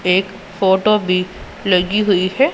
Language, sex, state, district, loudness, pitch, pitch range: Hindi, female, Punjab, Pathankot, -16 LUFS, 195 Hz, 185-205 Hz